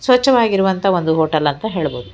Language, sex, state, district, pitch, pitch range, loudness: Kannada, female, Karnataka, Bangalore, 185 Hz, 155-220 Hz, -16 LUFS